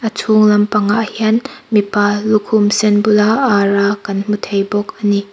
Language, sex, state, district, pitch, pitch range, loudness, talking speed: Mizo, female, Mizoram, Aizawl, 210 Hz, 205-215 Hz, -14 LUFS, 180 wpm